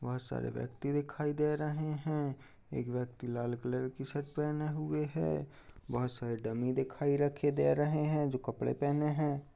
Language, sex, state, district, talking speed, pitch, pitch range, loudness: Hindi, male, Uttar Pradesh, Jyotiba Phule Nagar, 175 wpm, 140 Hz, 120-150 Hz, -35 LUFS